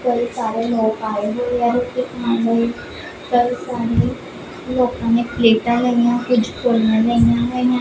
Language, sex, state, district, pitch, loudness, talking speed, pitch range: Punjabi, female, Punjab, Pathankot, 240 Hz, -18 LUFS, 145 wpm, 230-245 Hz